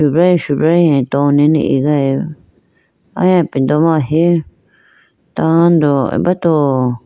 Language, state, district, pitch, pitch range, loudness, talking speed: Idu Mishmi, Arunachal Pradesh, Lower Dibang Valley, 155 Hz, 140-170 Hz, -13 LUFS, 95 wpm